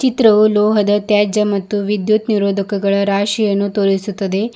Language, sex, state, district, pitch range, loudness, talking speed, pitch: Kannada, female, Karnataka, Bidar, 200-215 Hz, -15 LUFS, 105 wpm, 205 Hz